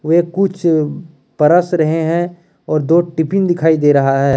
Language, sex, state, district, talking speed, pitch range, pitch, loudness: Hindi, male, Jharkhand, Deoghar, 165 wpm, 155-175 Hz, 165 Hz, -14 LUFS